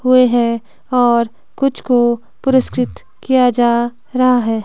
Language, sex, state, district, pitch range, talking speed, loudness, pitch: Hindi, female, Himachal Pradesh, Shimla, 235-255 Hz, 130 wpm, -15 LUFS, 245 Hz